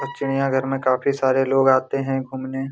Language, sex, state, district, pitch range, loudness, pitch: Hindi, male, Jharkhand, Jamtara, 130-135 Hz, -21 LUFS, 135 Hz